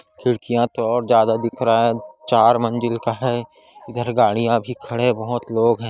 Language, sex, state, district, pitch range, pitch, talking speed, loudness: Hindi, female, Chhattisgarh, Kabirdham, 115-120 Hz, 115 Hz, 185 wpm, -19 LUFS